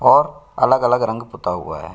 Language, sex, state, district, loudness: Hindi, male, Bihar, Bhagalpur, -18 LUFS